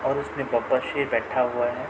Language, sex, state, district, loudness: Hindi, male, Uttar Pradesh, Budaun, -25 LUFS